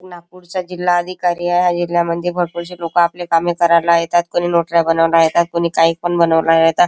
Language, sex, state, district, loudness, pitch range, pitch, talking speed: Marathi, male, Maharashtra, Chandrapur, -16 LUFS, 170-175 Hz, 170 Hz, 190 wpm